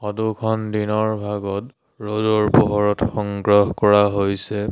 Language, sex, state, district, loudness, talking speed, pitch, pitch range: Assamese, male, Assam, Sonitpur, -19 LUFS, 115 wpm, 105 Hz, 105-110 Hz